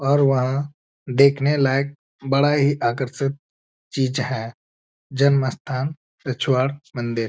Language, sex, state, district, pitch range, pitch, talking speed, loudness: Hindi, male, Bihar, Jamui, 125-140 Hz, 135 Hz, 105 wpm, -21 LUFS